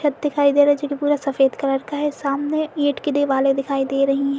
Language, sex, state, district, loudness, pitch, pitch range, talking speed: Hindi, female, Uttar Pradesh, Etah, -20 LUFS, 285 Hz, 275-290 Hz, 270 wpm